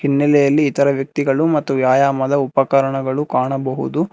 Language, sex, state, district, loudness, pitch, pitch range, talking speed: Kannada, male, Karnataka, Bangalore, -16 LUFS, 140 Hz, 135-145 Hz, 100 wpm